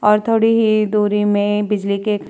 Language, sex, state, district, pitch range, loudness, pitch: Hindi, female, Uttar Pradesh, Jalaun, 205-215 Hz, -16 LUFS, 210 Hz